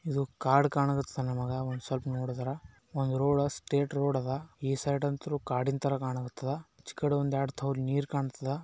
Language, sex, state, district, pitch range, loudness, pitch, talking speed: Kannada, male, Karnataka, Bijapur, 130-140 Hz, -32 LUFS, 135 Hz, 175 wpm